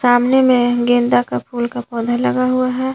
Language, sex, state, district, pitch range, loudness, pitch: Hindi, female, Jharkhand, Garhwa, 240-255 Hz, -16 LUFS, 245 Hz